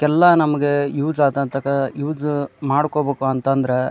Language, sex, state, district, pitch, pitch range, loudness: Kannada, male, Karnataka, Dharwad, 145 Hz, 135-150 Hz, -19 LUFS